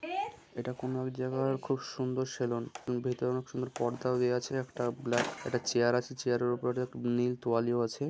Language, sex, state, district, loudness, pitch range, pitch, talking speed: Bengali, male, West Bengal, Jhargram, -33 LUFS, 120-130 Hz, 125 Hz, 180 wpm